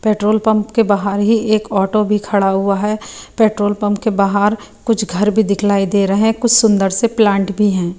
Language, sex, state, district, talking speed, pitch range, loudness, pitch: Hindi, female, Bihar, Katihar, 205 wpm, 200-220 Hz, -15 LUFS, 210 Hz